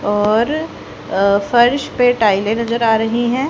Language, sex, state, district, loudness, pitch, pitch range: Hindi, female, Haryana, Charkhi Dadri, -15 LUFS, 230 Hz, 205-245 Hz